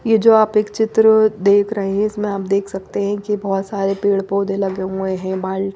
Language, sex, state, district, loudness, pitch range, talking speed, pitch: Hindi, female, Maharashtra, Mumbai Suburban, -17 LUFS, 195-210 Hz, 220 wpm, 200 Hz